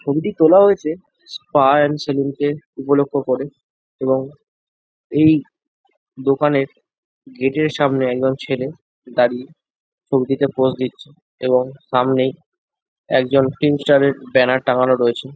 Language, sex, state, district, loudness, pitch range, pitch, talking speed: Bengali, male, West Bengal, Jalpaiguri, -18 LUFS, 130-155 Hz, 140 Hz, 115 wpm